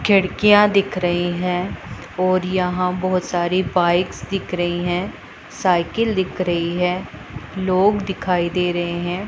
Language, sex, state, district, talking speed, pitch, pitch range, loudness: Hindi, female, Punjab, Pathankot, 135 wpm, 180 Hz, 175-190 Hz, -19 LUFS